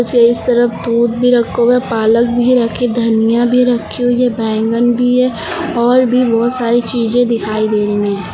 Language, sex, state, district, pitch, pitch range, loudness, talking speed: Hindi, female, Uttar Pradesh, Lucknow, 240 Hz, 230-245 Hz, -13 LUFS, 200 wpm